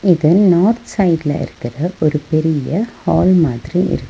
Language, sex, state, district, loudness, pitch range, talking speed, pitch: Tamil, female, Tamil Nadu, Nilgiris, -15 LUFS, 150-185 Hz, 130 wpm, 170 Hz